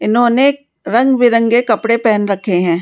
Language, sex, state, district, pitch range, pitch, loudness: Hindi, female, Rajasthan, Jaipur, 210-240 Hz, 230 Hz, -13 LUFS